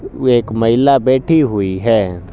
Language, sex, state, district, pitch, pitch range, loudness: Hindi, male, Haryana, Jhajjar, 115 Hz, 100-130 Hz, -14 LUFS